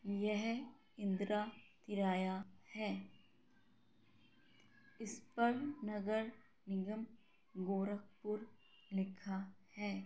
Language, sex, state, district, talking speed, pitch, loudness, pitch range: Hindi, female, Uttar Pradesh, Gorakhpur, 65 wpm, 210 Hz, -42 LUFS, 195-225 Hz